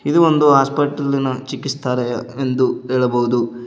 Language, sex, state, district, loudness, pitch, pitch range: Kannada, male, Karnataka, Koppal, -17 LUFS, 130 Hz, 125-140 Hz